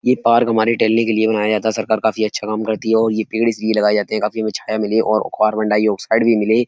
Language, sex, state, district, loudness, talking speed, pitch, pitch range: Hindi, male, Uttar Pradesh, Etah, -17 LUFS, 270 wpm, 110 Hz, 110-115 Hz